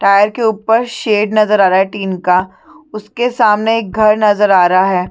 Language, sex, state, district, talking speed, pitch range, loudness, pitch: Hindi, female, Chhattisgarh, Sarguja, 210 wpm, 190-220 Hz, -12 LUFS, 210 Hz